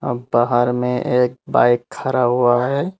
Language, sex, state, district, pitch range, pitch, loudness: Hindi, male, Tripura, Unakoti, 120-130 Hz, 125 Hz, -18 LUFS